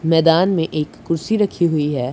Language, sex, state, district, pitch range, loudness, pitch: Hindi, male, Punjab, Pathankot, 155-170 Hz, -18 LUFS, 165 Hz